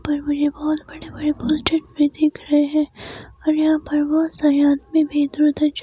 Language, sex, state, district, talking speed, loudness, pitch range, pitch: Hindi, female, Himachal Pradesh, Shimla, 215 wpm, -19 LUFS, 290-310 Hz, 300 Hz